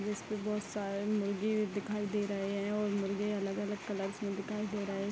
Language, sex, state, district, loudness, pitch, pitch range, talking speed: Hindi, female, Bihar, Vaishali, -36 LUFS, 205 Hz, 200-210 Hz, 225 wpm